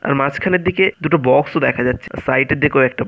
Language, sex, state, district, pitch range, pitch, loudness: Bengali, female, West Bengal, Purulia, 135-185 Hz, 150 Hz, -16 LUFS